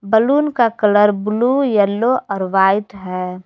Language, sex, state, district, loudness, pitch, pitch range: Hindi, female, Jharkhand, Garhwa, -16 LUFS, 210 Hz, 195-240 Hz